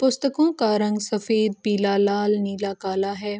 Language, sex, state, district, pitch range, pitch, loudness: Hindi, female, Bihar, Gopalganj, 200-220 Hz, 210 Hz, -22 LUFS